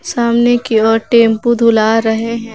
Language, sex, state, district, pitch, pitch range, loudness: Hindi, female, Jharkhand, Garhwa, 230 Hz, 225-235 Hz, -12 LUFS